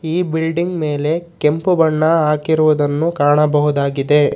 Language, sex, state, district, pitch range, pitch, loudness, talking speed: Kannada, male, Karnataka, Bangalore, 150-165 Hz, 155 Hz, -16 LUFS, 95 wpm